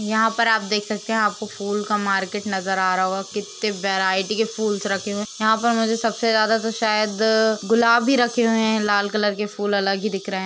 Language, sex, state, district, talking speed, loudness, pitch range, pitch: Hindi, female, Uttar Pradesh, Jalaun, 235 wpm, -21 LUFS, 200-225 Hz, 215 Hz